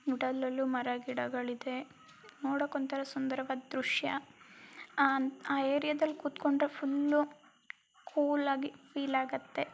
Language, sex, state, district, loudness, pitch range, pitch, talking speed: Kannada, female, Karnataka, Mysore, -34 LUFS, 260-290 Hz, 275 Hz, 100 wpm